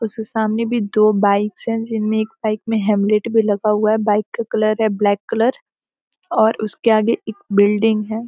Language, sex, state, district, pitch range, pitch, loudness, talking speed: Hindi, female, Bihar, Gopalganj, 210-225 Hz, 220 Hz, -18 LUFS, 195 wpm